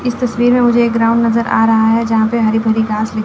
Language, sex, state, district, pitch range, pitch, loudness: Hindi, female, Chandigarh, Chandigarh, 220-235 Hz, 230 Hz, -13 LUFS